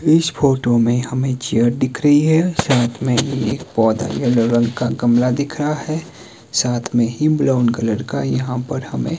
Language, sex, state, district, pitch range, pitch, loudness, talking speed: Hindi, male, Himachal Pradesh, Shimla, 120-150 Hz, 125 Hz, -17 LUFS, 195 wpm